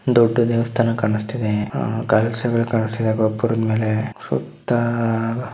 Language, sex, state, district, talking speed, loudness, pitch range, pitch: Kannada, male, Karnataka, Dharwad, 85 wpm, -20 LUFS, 110-120 Hz, 115 Hz